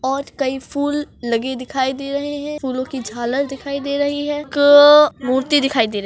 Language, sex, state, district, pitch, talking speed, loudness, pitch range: Hindi, female, Maharashtra, Solapur, 275 Hz, 200 wpm, -17 LUFS, 260-290 Hz